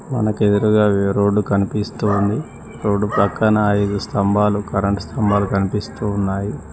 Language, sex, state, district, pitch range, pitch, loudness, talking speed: Telugu, male, Telangana, Mahabubabad, 100-105 Hz, 105 Hz, -18 LUFS, 105 wpm